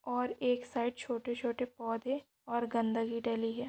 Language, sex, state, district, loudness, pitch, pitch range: Hindi, female, Maharashtra, Pune, -36 LUFS, 240 Hz, 230-245 Hz